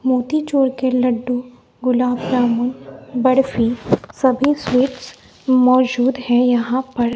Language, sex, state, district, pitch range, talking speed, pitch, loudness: Hindi, female, Bihar, West Champaran, 245-260 Hz, 100 wpm, 250 Hz, -17 LUFS